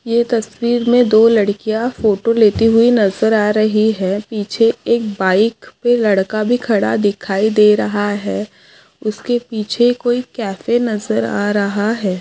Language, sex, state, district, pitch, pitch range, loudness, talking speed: Hindi, female, Maharashtra, Nagpur, 215 Hz, 205-235 Hz, -15 LUFS, 155 wpm